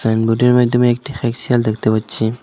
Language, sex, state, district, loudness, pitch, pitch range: Bengali, male, Assam, Hailakandi, -16 LUFS, 120 Hz, 110-125 Hz